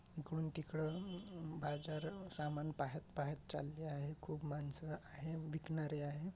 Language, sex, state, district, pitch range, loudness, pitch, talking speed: Marathi, male, Maharashtra, Chandrapur, 150-160 Hz, -45 LUFS, 155 Hz, 125 wpm